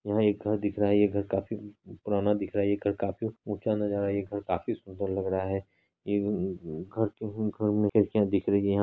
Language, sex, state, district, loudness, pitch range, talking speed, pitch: Hindi, female, Bihar, Araria, -29 LUFS, 100-105 Hz, 240 wpm, 100 Hz